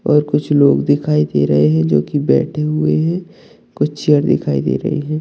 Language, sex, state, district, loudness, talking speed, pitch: Hindi, male, Maharashtra, Sindhudurg, -15 LUFS, 205 wpm, 145 Hz